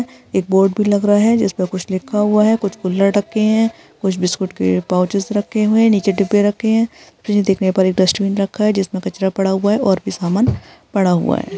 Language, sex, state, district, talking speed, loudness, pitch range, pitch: Hindi, female, Bihar, Jahanabad, 210 wpm, -16 LUFS, 190-210 Hz, 200 Hz